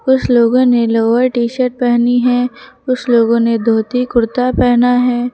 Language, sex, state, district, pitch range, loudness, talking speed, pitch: Hindi, female, Uttar Pradesh, Lucknow, 235-250 Hz, -13 LUFS, 170 wpm, 245 Hz